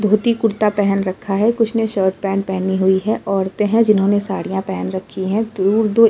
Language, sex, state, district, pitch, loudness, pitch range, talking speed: Hindi, female, Uttar Pradesh, Jalaun, 200 Hz, -17 LUFS, 190-220 Hz, 205 wpm